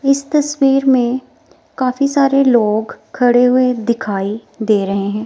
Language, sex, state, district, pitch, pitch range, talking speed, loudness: Hindi, female, Himachal Pradesh, Shimla, 250 Hz, 220-275 Hz, 135 wpm, -15 LUFS